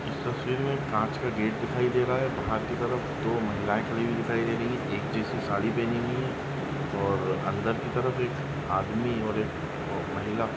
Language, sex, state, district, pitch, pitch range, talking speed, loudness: Hindi, male, Chhattisgarh, Rajnandgaon, 120 Hz, 115-130 Hz, 220 wpm, -29 LUFS